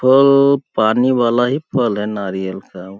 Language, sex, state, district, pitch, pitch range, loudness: Hindi, male, Chhattisgarh, Balrampur, 120 Hz, 100-135 Hz, -15 LUFS